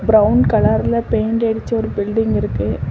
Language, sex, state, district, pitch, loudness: Tamil, female, Tamil Nadu, Namakkal, 215 Hz, -17 LUFS